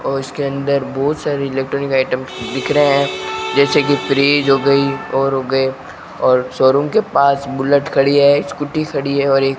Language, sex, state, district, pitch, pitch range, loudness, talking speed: Hindi, male, Rajasthan, Bikaner, 140 Hz, 135-140 Hz, -16 LUFS, 190 wpm